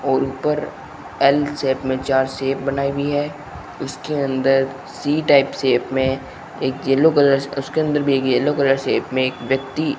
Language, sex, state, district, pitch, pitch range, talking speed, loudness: Hindi, male, Rajasthan, Bikaner, 135 Hz, 135-145 Hz, 170 wpm, -19 LUFS